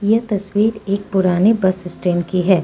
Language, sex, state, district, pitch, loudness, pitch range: Hindi, female, Jharkhand, Deoghar, 195 Hz, -17 LUFS, 180-210 Hz